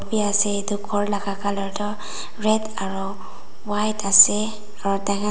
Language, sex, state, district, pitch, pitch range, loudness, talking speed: Nagamese, female, Nagaland, Dimapur, 205 Hz, 200-210 Hz, -21 LUFS, 145 wpm